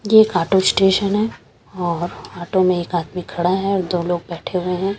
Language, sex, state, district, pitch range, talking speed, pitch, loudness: Hindi, female, Punjab, Pathankot, 175-195 Hz, 215 wpm, 180 Hz, -19 LUFS